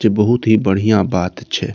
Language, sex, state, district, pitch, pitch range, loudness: Maithili, male, Bihar, Saharsa, 105 Hz, 95-110 Hz, -15 LUFS